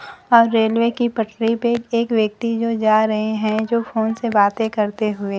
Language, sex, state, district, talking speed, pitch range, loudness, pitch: Hindi, female, Bihar, Kaimur, 190 wpm, 215-230 Hz, -18 LUFS, 225 Hz